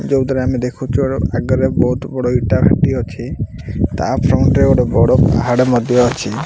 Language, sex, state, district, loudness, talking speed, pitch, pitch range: Odia, male, Odisha, Malkangiri, -15 LUFS, 165 wpm, 125 Hz, 120-130 Hz